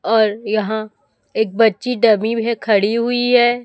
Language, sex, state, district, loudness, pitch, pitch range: Hindi, female, Chhattisgarh, Raipur, -17 LUFS, 220 Hz, 215-235 Hz